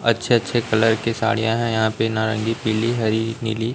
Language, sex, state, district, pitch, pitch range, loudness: Hindi, male, Chhattisgarh, Raipur, 115 Hz, 110-115 Hz, -20 LUFS